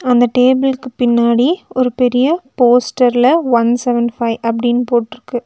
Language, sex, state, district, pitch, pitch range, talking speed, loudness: Tamil, female, Tamil Nadu, Nilgiris, 245 Hz, 240-255 Hz, 120 wpm, -14 LUFS